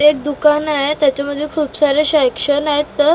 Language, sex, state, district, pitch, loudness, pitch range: Marathi, female, Maharashtra, Mumbai Suburban, 295 Hz, -15 LUFS, 285-300 Hz